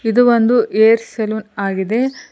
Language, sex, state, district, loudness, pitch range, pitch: Kannada, female, Karnataka, Koppal, -15 LUFS, 215-240 Hz, 225 Hz